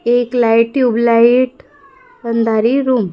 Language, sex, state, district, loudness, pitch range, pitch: Marathi, female, Maharashtra, Gondia, -13 LUFS, 230-260 Hz, 245 Hz